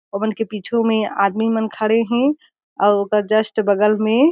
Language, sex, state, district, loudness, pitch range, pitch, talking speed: Chhattisgarhi, female, Chhattisgarh, Jashpur, -18 LUFS, 210-230 Hz, 220 Hz, 180 wpm